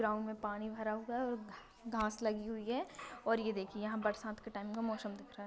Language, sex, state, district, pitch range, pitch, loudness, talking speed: Hindi, female, Bihar, Lakhisarai, 210-225 Hz, 215 Hz, -40 LUFS, 275 wpm